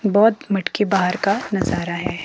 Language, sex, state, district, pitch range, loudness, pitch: Hindi, female, Himachal Pradesh, Shimla, 180-210 Hz, -20 LUFS, 200 Hz